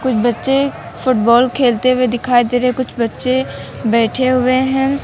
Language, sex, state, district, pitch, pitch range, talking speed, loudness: Hindi, female, Uttar Pradesh, Lucknow, 255 Hz, 240-260 Hz, 145 wpm, -15 LUFS